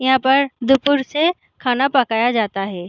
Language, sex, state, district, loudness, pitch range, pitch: Hindi, female, Bihar, Sitamarhi, -17 LUFS, 230-275 Hz, 265 Hz